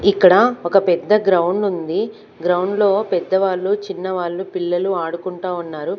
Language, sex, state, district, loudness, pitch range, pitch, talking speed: Telugu, female, Andhra Pradesh, Manyam, -18 LUFS, 175-195 Hz, 185 Hz, 110 wpm